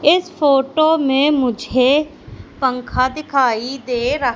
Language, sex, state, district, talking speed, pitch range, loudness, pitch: Hindi, female, Madhya Pradesh, Katni, 110 wpm, 255-295 Hz, -17 LUFS, 270 Hz